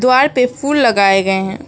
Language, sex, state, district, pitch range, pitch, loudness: Hindi, female, West Bengal, Alipurduar, 195-270 Hz, 250 Hz, -13 LUFS